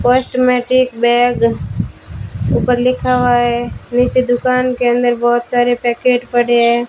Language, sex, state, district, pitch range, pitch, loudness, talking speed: Hindi, female, Rajasthan, Bikaner, 240-250 Hz, 245 Hz, -14 LUFS, 130 wpm